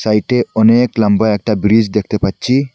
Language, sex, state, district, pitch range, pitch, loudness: Bengali, male, Assam, Hailakandi, 105-120 Hz, 110 Hz, -13 LUFS